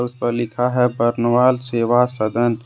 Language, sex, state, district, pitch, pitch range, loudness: Hindi, male, Jharkhand, Deoghar, 120 Hz, 120-125 Hz, -18 LUFS